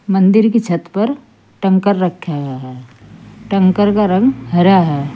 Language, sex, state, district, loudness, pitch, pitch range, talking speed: Hindi, female, Uttar Pradesh, Saharanpur, -14 LUFS, 190 Hz, 165-205 Hz, 150 wpm